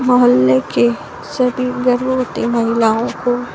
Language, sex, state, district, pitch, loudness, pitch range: Hindi, female, Bihar, Saran, 245 Hz, -15 LUFS, 200-250 Hz